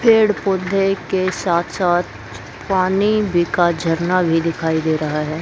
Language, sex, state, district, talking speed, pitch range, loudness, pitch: Hindi, female, Haryana, Jhajjar, 155 wpm, 160-195 Hz, -18 LUFS, 175 Hz